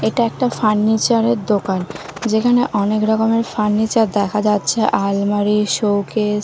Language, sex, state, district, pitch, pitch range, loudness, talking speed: Bengali, female, Odisha, Nuapada, 215 Hz, 205-225 Hz, -17 LUFS, 120 wpm